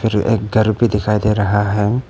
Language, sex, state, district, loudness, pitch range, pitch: Hindi, male, Arunachal Pradesh, Papum Pare, -16 LUFS, 105-115 Hz, 105 Hz